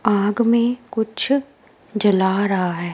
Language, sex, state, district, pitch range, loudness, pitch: Hindi, female, Himachal Pradesh, Shimla, 195-235 Hz, -19 LUFS, 210 Hz